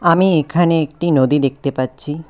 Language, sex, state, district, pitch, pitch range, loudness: Bengali, male, West Bengal, Cooch Behar, 155 Hz, 140-170 Hz, -16 LUFS